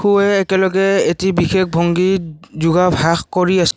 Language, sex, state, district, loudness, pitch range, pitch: Assamese, male, Assam, Kamrup Metropolitan, -15 LUFS, 170-190 Hz, 180 Hz